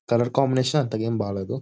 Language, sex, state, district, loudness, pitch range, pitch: Telugu, male, Telangana, Nalgonda, -23 LUFS, 110-130 Hz, 120 Hz